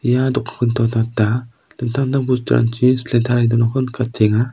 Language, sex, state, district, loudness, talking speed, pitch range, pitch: Garo, male, Meghalaya, South Garo Hills, -17 LUFS, 105 wpm, 115-125 Hz, 120 Hz